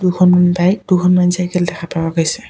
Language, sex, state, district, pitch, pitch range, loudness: Assamese, male, Assam, Kamrup Metropolitan, 180 Hz, 170-180 Hz, -14 LUFS